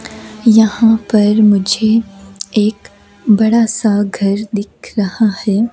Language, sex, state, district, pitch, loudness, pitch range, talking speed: Hindi, female, Himachal Pradesh, Shimla, 210 Hz, -13 LUFS, 200-220 Hz, 105 wpm